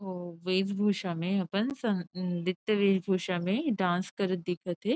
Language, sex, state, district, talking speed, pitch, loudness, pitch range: Chhattisgarhi, female, Chhattisgarh, Rajnandgaon, 180 wpm, 190 Hz, -30 LUFS, 180-200 Hz